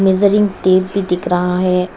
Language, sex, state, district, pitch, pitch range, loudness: Hindi, female, Arunachal Pradesh, Papum Pare, 185 Hz, 180-195 Hz, -15 LUFS